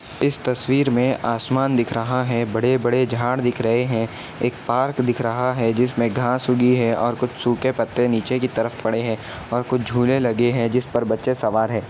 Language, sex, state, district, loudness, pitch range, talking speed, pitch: Hindi, male, Uttar Pradesh, Etah, -20 LUFS, 115-125 Hz, 200 wpm, 120 Hz